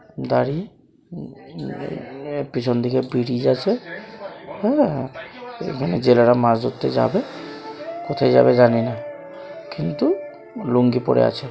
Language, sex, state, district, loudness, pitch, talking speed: Bengali, male, West Bengal, Malda, -20 LUFS, 130 Hz, 100 wpm